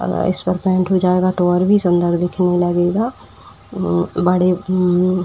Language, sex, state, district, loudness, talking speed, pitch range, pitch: Hindi, female, Uttar Pradesh, Etah, -16 LUFS, 170 wpm, 175-185 Hz, 180 Hz